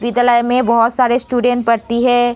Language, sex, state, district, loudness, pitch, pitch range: Hindi, female, Bihar, Jamui, -14 LUFS, 245 Hz, 235-245 Hz